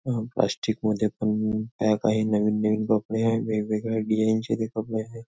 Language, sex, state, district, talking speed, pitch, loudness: Marathi, male, Maharashtra, Nagpur, 180 wpm, 110 Hz, -25 LUFS